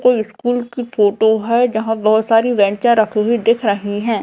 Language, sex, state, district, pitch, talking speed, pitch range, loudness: Hindi, female, Madhya Pradesh, Dhar, 225 Hz, 200 wpm, 215-240 Hz, -15 LUFS